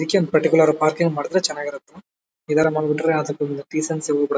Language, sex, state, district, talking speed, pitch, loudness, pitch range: Kannada, male, Karnataka, Bellary, 180 wpm, 155 Hz, -20 LUFS, 150-160 Hz